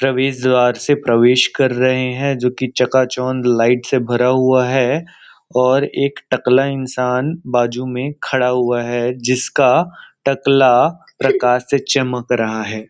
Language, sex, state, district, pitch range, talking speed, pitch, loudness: Hindi, male, Chhattisgarh, Rajnandgaon, 125-135 Hz, 145 wpm, 125 Hz, -16 LUFS